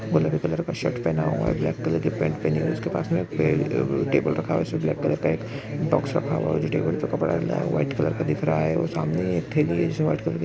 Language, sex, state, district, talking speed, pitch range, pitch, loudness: Maithili, male, Bihar, Araria, 285 wpm, 80-85 Hz, 80 Hz, -24 LUFS